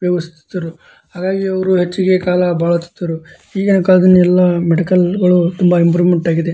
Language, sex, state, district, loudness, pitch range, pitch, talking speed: Kannada, male, Karnataka, Dharwad, -14 LUFS, 170-185 Hz, 180 Hz, 120 wpm